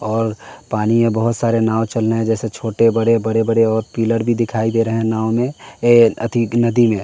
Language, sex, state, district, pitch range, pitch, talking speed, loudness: Hindi, male, Bihar, West Champaran, 110-115 Hz, 115 Hz, 220 wpm, -17 LUFS